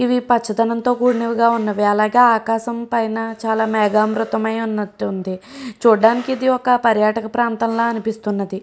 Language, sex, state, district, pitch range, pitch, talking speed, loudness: Telugu, female, Andhra Pradesh, Srikakulam, 215-235 Hz, 225 Hz, 140 wpm, -18 LUFS